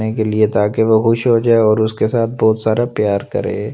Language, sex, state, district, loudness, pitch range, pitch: Hindi, male, Delhi, New Delhi, -15 LUFS, 110-115 Hz, 110 Hz